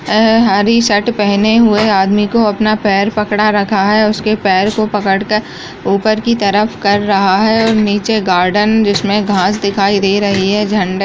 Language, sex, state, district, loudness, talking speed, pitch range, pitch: Hindi, female, Uttar Pradesh, Jyotiba Phule Nagar, -12 LUFS, 185 wpm, 200-215 Hz, 210 Hz